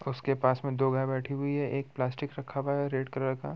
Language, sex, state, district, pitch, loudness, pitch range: Hindi, male, Bihar, Muzaffarpur, 135 Hz, -31 LUFS, 130-140 Hz